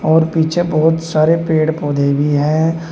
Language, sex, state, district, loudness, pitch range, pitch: Hindi, male, Uttar Pradesh, Shamli, -15 LUFS, 155-165 Hz, 160 Hz